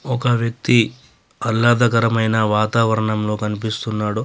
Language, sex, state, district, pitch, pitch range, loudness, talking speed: Telugu, male, Telangana, Adilabad, 110 Hz, 110-120 Hz, -18 LUFS, 70 wpm